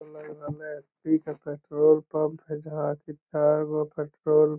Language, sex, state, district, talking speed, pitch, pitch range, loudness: Magahi, male, Bihar, Lakhisarai, 155 wpm, 150 Hz, 150-155 Hz, -26 LUFS